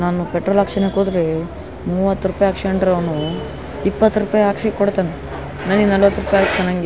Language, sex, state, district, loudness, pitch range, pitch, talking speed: Kannada, male, Karnataka, Raichur, -18 LUFS, 175-200 Hz, 195 Hz, 165 wpm